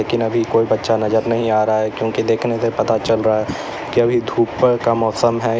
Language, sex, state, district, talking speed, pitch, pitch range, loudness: Hindi, male, Uttar Pradesh, Lalitpur, 225 wpm, 115 Hz, 110-115 Hz, -17 LUFS